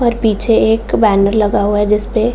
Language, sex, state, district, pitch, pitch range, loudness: Hindi, female, Bihar, Saran, 215 Hz, 205-225 Hz, -13 LUFS